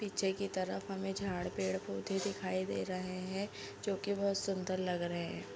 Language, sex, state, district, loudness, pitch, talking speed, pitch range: Hindi, female, Chhattisgarh, Bilaspur, -38 LUFS, 190 Hz, 185 wpm, 185-195 Hz